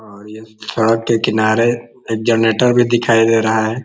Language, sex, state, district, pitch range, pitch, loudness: Hindi, male, Uttar Pradesh, Ghazipur, 110-115 Hz, 115 Hz, -15 LUFS